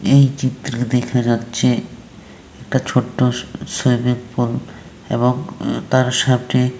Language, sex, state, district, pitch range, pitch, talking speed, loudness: Bengali, male, West Bengal, Malda, 120-130 Hz, 125 Hz, 95 wpm, -18 LUFS